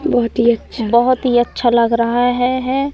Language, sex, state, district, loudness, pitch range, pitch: Hindi, female, Madhya Pradesh, Katni, -15 LUFS, 235-250 Hz, 240 Hz